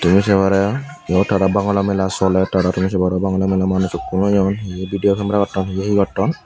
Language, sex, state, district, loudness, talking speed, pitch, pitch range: Chakma, male, Tripura, Unakoti, -17 LUFS, 205 wpm, 95 Hz, 95-100 Hz